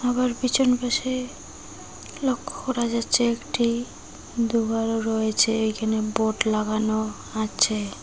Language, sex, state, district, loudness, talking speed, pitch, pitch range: Bengali, female, West Bengal, Cooch Behar, -24 LUFS, 95 wpm, 230 Hz, 220-245 Hz